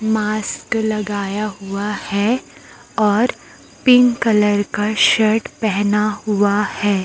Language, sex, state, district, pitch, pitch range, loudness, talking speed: Hindi, female, Chhattisgarh, Raipur, 210 Hz, 205-220 Hz, -17 LUFS, 100 wpm